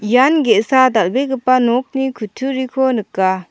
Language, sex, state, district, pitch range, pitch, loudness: Garo, female, Meghalaya, South Garo Hills, 215-265 Hz, 255 Hz, -15 LUFS